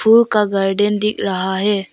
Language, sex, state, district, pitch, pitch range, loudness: Hindi, female, Arunachal Pradesh, Papum Pare, 205 Hz, 195-210 Hz, -16 LUFS